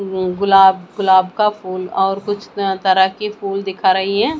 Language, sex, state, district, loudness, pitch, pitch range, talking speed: Hindi, female, Maharashtra, Mumbai Suburban, -16 LUFS, 195 Hz, 190-200 Hz, 165 wpm